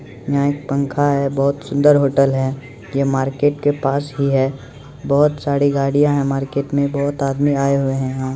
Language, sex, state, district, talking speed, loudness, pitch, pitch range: Maithili, male, Bihar, Supaul, 195 wpm, -18 LUFS, 140 Hz, 135-145 Hz